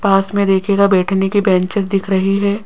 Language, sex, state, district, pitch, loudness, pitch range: Hindi, female, Rajasthan, Jaipur, 195 Hz, -15 LUFS, 190-200 Hz